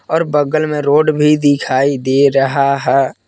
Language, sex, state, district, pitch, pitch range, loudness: Hindi, male, Jharkhand, Palamu, 145 Hz, 135-150 Hz, -13 LUFS